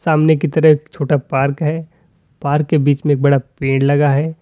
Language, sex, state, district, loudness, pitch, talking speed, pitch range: Hindi, male, Uttar Pradesh, Lalitpur, -15 LUFS, 150 Hz, 190 wpm, 140-155 Hz